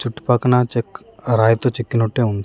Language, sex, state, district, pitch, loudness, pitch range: Telugu, male, Andhra Pradesh, Srikakulam, 120 Hz, -18 LUFS, 115-125 Hz